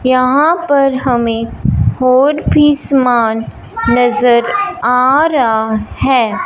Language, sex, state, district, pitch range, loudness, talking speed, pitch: Hindi, female, Punjab, Fazilka, 235-285 Hz, -12 LUFS, 95 wpm, 255 Hz